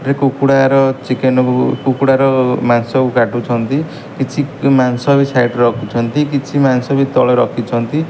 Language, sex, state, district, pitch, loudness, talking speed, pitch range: Odia, male, Odisha, Khordha, 130 Hz, -14 LUFS, 155 wpm, 120-140 Hz